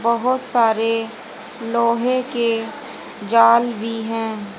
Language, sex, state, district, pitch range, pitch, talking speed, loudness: Hindi, female, Haryana, Jhajjar, 225-235 Hz, 230 Hz, 90 wpm, -18 LUFS